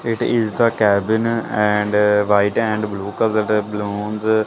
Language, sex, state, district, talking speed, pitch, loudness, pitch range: English, male, Punjab, Kapurthala, 145 wpm, 105 Hz, -18 LUFS, 105-110 Hz